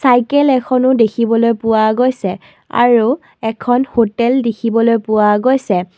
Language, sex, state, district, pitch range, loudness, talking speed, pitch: Assamese, female, Assam, Kamrup Metropolitan, 220-255 Hz, -14 LUFS, 110 wpm, 230 Hz